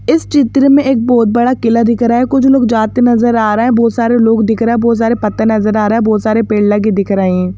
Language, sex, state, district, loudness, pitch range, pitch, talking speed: Hindi, female, Madhya Pradesh, Bhopal, -11 LUFS, 215-240 Hz, 230 Hz, 290 wpm